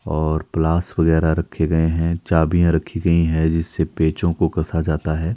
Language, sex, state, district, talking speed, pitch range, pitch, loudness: Hindi, male, Himachal Pradesh, Shimla, 180 wpm, 80-85 Hz, 80 Hz, -19 LUFS